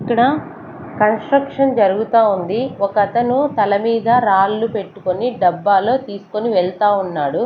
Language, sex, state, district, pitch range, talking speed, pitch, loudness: Telugu, female, Andhra Pradesh, Sri Satya Sai, 195-240 Hz, 105 wpm, 210 Hz, -16 LUFS